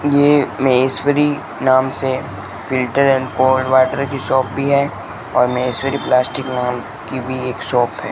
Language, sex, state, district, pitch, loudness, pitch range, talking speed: Hindi, male, Rajasthan, Bikaner, 130 Hz, -17 LUFS, 125-140 Hz, 155 wpm